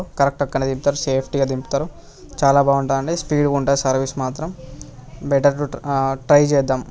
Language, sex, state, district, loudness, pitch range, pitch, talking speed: Telugu, male, Telangana, Karimnagar, -19 LUFS, 135-145 Hz, 140 Hz, 130 wpm